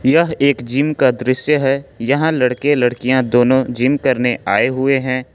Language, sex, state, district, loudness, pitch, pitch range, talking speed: Hindi, male, Jharkhand, Ranchi, -15 LUFS, 130 Hz, 125-140 Hz, 155 wpm